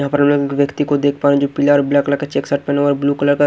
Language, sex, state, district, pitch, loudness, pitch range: Hindi, male, Haryana, Jhajjar, 140 Hz, -16 LUFS, 140-145 Hz